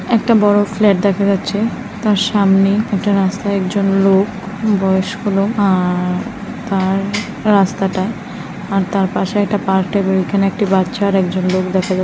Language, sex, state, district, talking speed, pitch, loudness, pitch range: Bengali, female, West Bengal, Purulia, 165 wpm, 200 Hz, -15 LUFS, 190-205 Hz